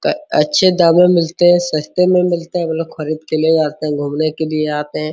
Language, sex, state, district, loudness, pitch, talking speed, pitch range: Hindi, male, Bihar, Araria, -15 LUFS, 160 Hz, 255 wpm, 155-175 Hz